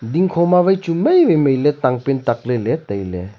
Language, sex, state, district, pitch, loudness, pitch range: Wancho, male, Arunachal Pradesh, Longding, 140 Hz, -16 LUFS, 120-170 Hz